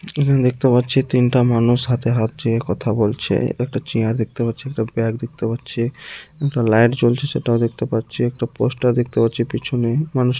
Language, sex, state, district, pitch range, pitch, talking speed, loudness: Bengali, male, West Bengal, Dakshin Dinajpur, 115-130 Hz, 120 Hz, 180 wpm, -19 LUFS